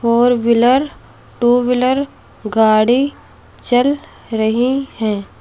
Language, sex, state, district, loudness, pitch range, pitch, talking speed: Hindi, female, Uttar Pradesh, Lucknow, -15 LUFS, 225-260 Hz, 245 Hz, 90 wpm